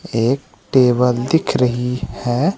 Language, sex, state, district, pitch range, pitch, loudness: Hindi, male, West Bengal, Alipurduar, 120-130 Hz, 125 Hz, -17 LUFS